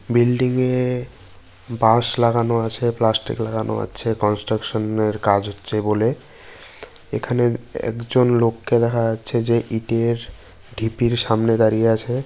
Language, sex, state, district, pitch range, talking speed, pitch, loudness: Bengali, male, West Bengal, Jalpaiguri, 110-120 Hz, 115 wpm, 115 Hz, -20 LUFS